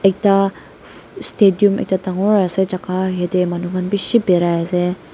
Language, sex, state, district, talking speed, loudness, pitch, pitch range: Nagamese, female, Nagaland, Dimapur, 140 wpm, -17 LUFS, 185 Hz, 180-195 Hz